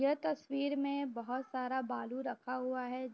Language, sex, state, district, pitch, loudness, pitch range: Hindi, female, Uttar Pradesh, Jyotiba Phule Nagar, 255 Hz, -38 LUFS, 255-280 Hz